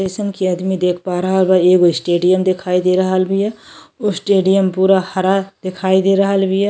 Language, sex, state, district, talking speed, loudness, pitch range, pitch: Bhojpuri, female, Uttar Pradesh, Deoria, 190 wpm, -15 LUFS, 185-195 Hz, 190 Hz